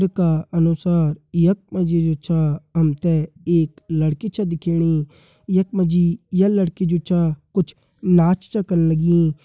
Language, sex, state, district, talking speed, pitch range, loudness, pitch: Garhwali, male, Uttarakhand, Tehri Garhwal, 140 wpm, 160-180 Hz, -19 LUFS, 170 Hz